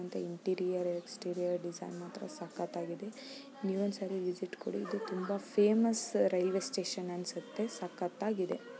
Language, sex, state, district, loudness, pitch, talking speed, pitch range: Kannada, female, Karnataka, Chamarajanagar, -36 LUFS, 185 Hz, 115 wpm, 180-205 Hz